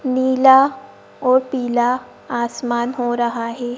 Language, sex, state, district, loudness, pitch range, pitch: Hindi, female, Madhya Pradesh, Bhopal, -18 LUFS, 240-260 Hz, 250 Hz